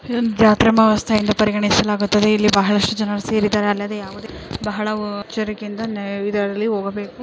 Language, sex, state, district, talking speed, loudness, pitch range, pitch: Kannada, female, Karnataka, Bellary, 65 wpm, -18 LUFS, 205-215 Hz, 210 Hz